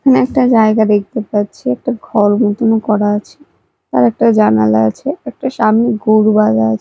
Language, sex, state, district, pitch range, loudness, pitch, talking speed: Bengali, female, Odisha, Malkangiri, 205-245 Hz, -13 LUFS, 215 Hz, 165 wpm